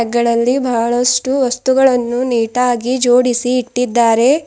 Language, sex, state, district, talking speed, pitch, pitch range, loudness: Kannada, female, Karnataka, Bidar, 80 wpm, 245 Hz, 235-255 Hz, -14 LUFS